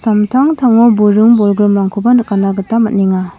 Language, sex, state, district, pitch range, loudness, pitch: Garo, female, Meghalaya, West Garo Hills, 200-230 Hz, -11 LUFS, 210 Hz